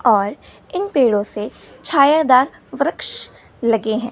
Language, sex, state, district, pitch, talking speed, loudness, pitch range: Hindi, female, Gujarat, Gandhinagar, 245 Hz, 115 wpm, -18 LUFS, 220-280 Hz